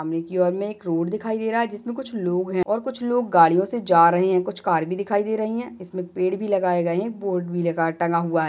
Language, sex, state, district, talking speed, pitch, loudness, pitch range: Hindi, female, Maharashtra, Nagpur, 290 wpm, 185 Hz, -22 LUFS, 175-215 Hz